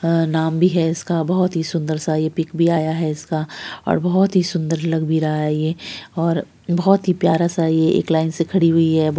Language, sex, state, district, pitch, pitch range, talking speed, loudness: Hindi, female, Bihar, Saharsa, 165 Hz, 160-170 Hz, 230 wpm, -19 LUFS